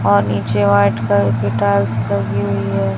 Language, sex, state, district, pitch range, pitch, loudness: Hindi, female, Chhattisgarh, Raipur, 100-105 Hz, 100 Hz, -16 LUFS